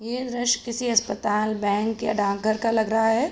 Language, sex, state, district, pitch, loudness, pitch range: Hindi, female, Uttar Pradesh, Budaun, 225 Hz, -23 LUFS, 215-240 Hz